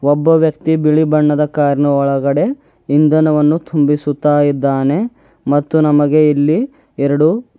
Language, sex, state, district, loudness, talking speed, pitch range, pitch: Kannada, male, Karnataka, Bidar, -13 LUFS, 110 wpm, 145-160 Hz, 150 Hz